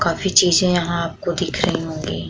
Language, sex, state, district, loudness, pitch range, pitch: Hindi, female, Uttar Pradesh, Muzaffarnagar, -19 LUFS, 165-180 Hz, 170 Hz